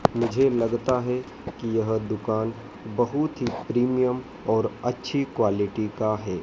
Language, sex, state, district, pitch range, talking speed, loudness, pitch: Hindi, male, Madhya Pradesh, Dhar, 110-125 Hz, 130 wpm, -26 LUFS, 115 Hz